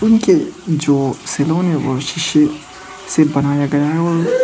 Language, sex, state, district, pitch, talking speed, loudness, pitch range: Hindi, male, Arunachal Pradesh, Papum Pare, 150 Hz, 95 wpm, -16 LUFS, 145-165 Hz